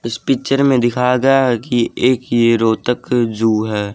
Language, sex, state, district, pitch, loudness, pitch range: Hindi, male, Haryana, Charkhi Dadri, 120 Hz, -15 LUFS, 115-130 Hz